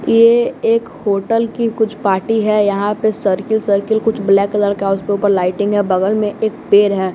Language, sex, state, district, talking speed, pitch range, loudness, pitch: Hindi, male, Bihar, West Champaran, 200 wpm, 200-220 Hz, -15 LUFS, 205 Hz